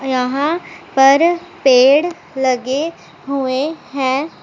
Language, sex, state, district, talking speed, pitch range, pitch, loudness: Hindi, female, Punjab, Pathankot, 80 wpm, 260-320 Hz, 275 Hz, -16 LUFS